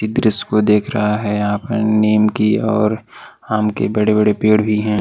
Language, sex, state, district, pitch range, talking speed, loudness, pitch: Hindi, male, Delhi, New Delhi, 105-110 Hz, 190 wpm, -16 LUFS, 105 Hz